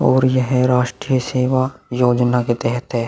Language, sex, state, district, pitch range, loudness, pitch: Hindi, male, Chhattisgarh, Korba, 120-130 Hz, -18 LUFS, 125 Hz